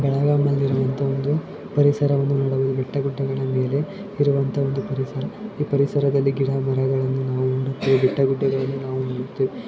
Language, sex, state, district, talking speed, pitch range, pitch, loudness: Kannada, male, Karnataka, Belgaum, 145 wpm, 135-140 Hz, 135 Hz, -22 LUFS